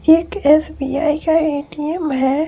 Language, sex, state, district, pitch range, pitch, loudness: Hindi, female, Bihar, Supaul, 290-320 Hz, 305 Hz, -17 LUFS